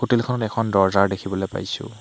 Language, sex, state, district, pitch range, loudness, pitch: Assamese, male, Assam, Hailakandi, 95-120 Hz, -22 LUFS, 110 Hz